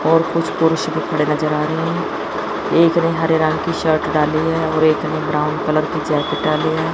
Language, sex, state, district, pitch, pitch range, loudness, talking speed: Hindi, female, Chandigarh, Chandigarh, 155 Hz, 155-165 Hz, -17 LUFS, 225 wpm